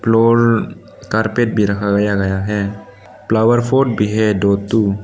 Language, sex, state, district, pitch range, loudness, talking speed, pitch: Hindi, male, Arunachal Pradesh, Lower Dibang Valley, 100-115 Hz, -15 LUFS, 130 wpm, 105 Hz